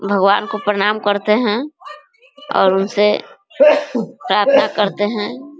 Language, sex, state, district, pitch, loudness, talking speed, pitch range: Hindi, female, Bihar, East Champaran, 215 Hz, -16 LUFS, 105 wpm, 205-290 Hz